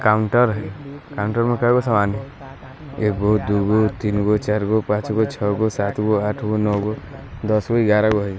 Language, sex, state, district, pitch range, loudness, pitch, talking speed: Maithili, male, Bihar, Muzaffarpur, 105-120 Hz, -20 LUFS, 105 Hz, 220 wpm